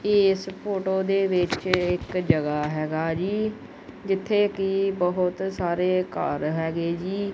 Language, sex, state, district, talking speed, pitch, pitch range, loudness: Punjabi, male, Punjab, Kapurthala, 120 wpm, 185 Hz, 175-195 Hz, -25 LUFS